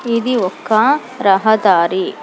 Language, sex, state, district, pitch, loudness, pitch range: Telugu, female, Telangana, Hyderabad, 220 Hz, -14 LUFS, 195-245 Hz